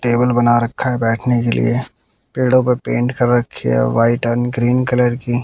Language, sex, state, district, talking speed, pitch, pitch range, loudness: Hindi, male, Bihar, West Champaran, 200 wpm, 120 Hz, 115-125 Hz, -16 LUFS